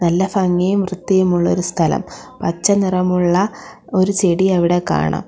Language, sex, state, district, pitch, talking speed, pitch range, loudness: Malayalam, female, Kerala, Kollam, 185 Hz, 125 wpm, 175-195 Hz, -17 LUFS